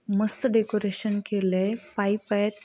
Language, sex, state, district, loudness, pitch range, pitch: Marathi, female, Maharashtra, Pune, -26 LUFS, 205-215 Hz, 205 Hz